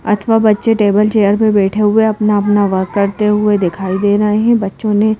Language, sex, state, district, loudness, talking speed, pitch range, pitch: Hindi, female, Madhya Pradesh, Bhopal, -13 LUFS, 195 wpm, 200-215 Hz, 210 Hz